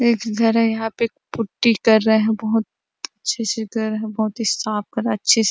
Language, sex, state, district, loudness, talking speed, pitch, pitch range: Hindi, female, Chhattisgarh, Bastar, -20 LUFS, 250 wpm, 225 Hz, 220-230 Hz